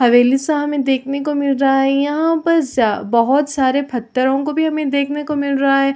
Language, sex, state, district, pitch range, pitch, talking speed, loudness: Hindi, female, Chhattisgarh, Raigarh, 265-295 Hz, 275 Hz, 210 wpm, -16 LUFS